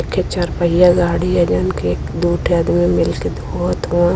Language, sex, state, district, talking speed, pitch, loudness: Bhojpuri, female, Uttar Pradesh, Varanasi, 185 wpm, 170 Hz, -16 LUFS